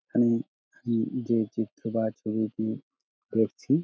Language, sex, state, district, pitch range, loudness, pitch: Bengali, male, West Bengal, Dakshin Dinajpur, 110-115 Hz, -29 LUFS, 110 Hz